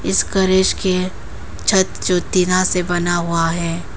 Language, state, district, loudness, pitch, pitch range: Hindi, Arunachal Pradesh, Papum Pare, -17 LUFS, 180 Hz, 170-185 Hz